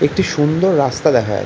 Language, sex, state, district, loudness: Bengali, male, West Bengal, Kolkata, -15 LUFS